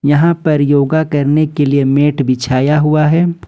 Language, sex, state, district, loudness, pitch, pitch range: Hindi, male, Jharkhand, Ranchi, -12 LUFS, 145 Hz, 140-155 Hz